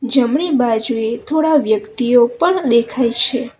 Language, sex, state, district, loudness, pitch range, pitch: Gujarati, female, Gujarat, Valsad, -15 LUFS, 235-270 Hz, 245 Hz